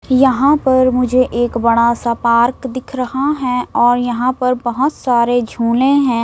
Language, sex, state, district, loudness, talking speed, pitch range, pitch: Hindi, female, Chhattisgarh, Raipur, -14 LUFS, 165 wpm, 240-260 Hz, 250 Hz